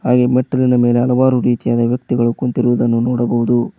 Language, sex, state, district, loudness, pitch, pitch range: Kannada, male, Karnataka, Koppal, -15 LUFS, 120 Hz, 120-125 Hz